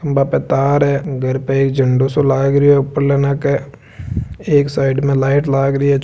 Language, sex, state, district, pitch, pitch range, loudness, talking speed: Marwari, male, Rajasthan, Nagaur, 140 Hz, 135-140 Hz, -15 LUFS, 200 wpm